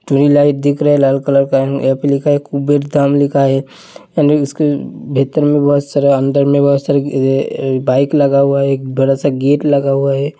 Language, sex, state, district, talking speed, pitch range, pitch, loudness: Hindi, male, Uttar Pradesh, Hamirpur, 215 wpm, 135-145 Hz, 140 Hz, -13 LUFS